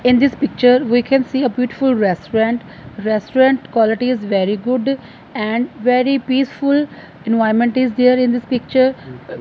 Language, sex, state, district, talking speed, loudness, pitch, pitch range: English, female, Punjab, Fazilka, 140 wpm, -16 LUFS, 250 Hz, 225-260 Hz